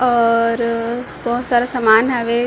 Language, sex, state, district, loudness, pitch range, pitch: Chhattisgarhi, female, Chhattisgarh, Bilaspur, -16 LUFS, 230-245 Hz, 235 Hz